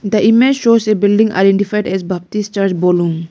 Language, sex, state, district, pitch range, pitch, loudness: English, female, Arunachal Pradesh, Lower Dibang Valley, 190-215 Hz, 205 Hz, -13 LUFS